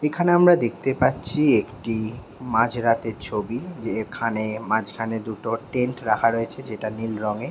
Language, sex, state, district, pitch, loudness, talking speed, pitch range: Bengali, male, West Bengal, Jhargram, 115 Hz, -23 LUFS, 145 wpm, 110-125 Hz